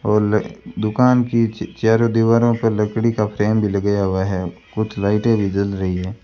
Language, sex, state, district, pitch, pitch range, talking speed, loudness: Hindi, male, Rajasthan, Bikaner, 105 Hz, 100-115 Hz, 190 wpm, -18 LUFS